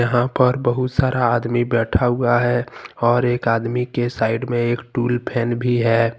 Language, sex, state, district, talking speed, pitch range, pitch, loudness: Hindi, male, Jharkhand, Ranchi, 175 wpm, 120-125 Hz, 120 Hz, -19 LUFS